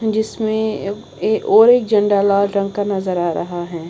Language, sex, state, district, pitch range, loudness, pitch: Hindi, female, Uttar Pradesh, Lalitpur, 195-220 Hz, -17 LUFS, 205 Hz